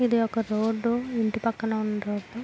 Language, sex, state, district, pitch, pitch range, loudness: Telugu, female, Andhra Pradesh, Srikakulam, 225 Hz, 215-235 Hz, -27 LUFS